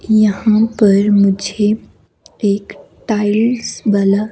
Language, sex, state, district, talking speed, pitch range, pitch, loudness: Hindi, female, Himachal Pradesh, Shimla, 85 wpm, 200-215 Hz, 210 Hz, -14 LUFS